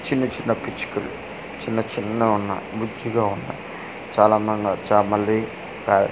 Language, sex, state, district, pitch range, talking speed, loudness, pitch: Telugu, male, Andhra Pradesh, Manyam, 105-115 Hz, 110 wpm, -23 LUFS, 110 Hz